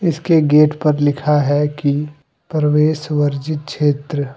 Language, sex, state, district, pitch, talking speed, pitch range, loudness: Hindi, male, Jharkhand, Deoghar, 150 Hz, 125 wpm, 145-150 Hz, -16 LUFS